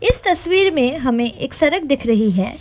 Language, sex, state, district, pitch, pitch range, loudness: Hindi, female, Assam, Kamrup Metropolitan, 280 Hz, 235-365 Hz, -17 LUFS